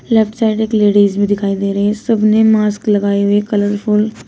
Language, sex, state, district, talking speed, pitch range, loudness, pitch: Hindi, female, Uttar Pradesh, Shamli, 225 wpm, 205-215 Hz, -14 LUFS, 210 Hz